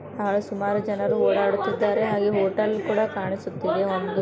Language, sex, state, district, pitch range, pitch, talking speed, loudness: Kannada, female, Karnataka, Gulbarga, 195-210 Hz, 205 Hz, 130 wpm, -24 LUFS